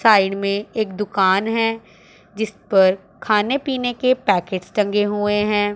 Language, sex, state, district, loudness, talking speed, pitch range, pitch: Hindi, female, Punjab, Pathankot, -19 LUFS, 145 wpm, 200-220 Hz, 205 Hz